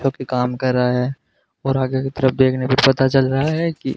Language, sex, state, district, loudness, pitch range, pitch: Hindi, male, Rajasthan, Bikaner, -18 LUFS, 130-135 Hz, 130 Hz